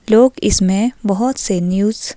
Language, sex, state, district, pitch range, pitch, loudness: Hindi, female, Himachal Pradesh, Shimla, 195-240 Hz, 215 Hz, -15 LUFS